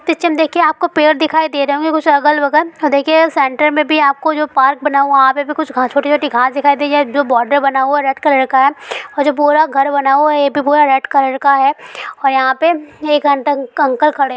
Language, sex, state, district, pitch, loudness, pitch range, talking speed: Hindi, female, Bihar, Sitamarhi, 290 Hz, -13 LUFS, 275-305 Hz, 245 wpm